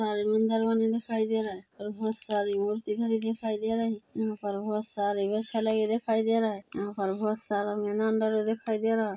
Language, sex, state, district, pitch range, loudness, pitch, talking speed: Hindi, female, Chhattisgarh, Korba, 210-225 Hz, -29 LUFS, 220 Hz, 215 wpm